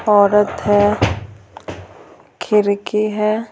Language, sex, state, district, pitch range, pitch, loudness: Hindi, female, Bihar, Patna, 205-215 Hz, 210 Hz, -16 LUFS